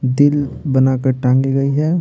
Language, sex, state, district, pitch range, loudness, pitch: Hindi, male, Bihar, Patna, 130-145 Hz, -16 LUFS, 135 Hz